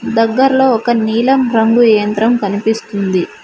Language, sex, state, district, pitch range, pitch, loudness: Telugu, female, Telangana, Mahabubabad, 215-240 Hz, 225 Hz, -13 LUFS